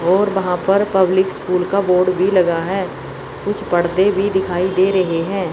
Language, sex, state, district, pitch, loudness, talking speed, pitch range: Hindi, female, Chandigarh, Chandigarh, 190 Hz, -17 LUFS, 185 wpm, 180-195 Hz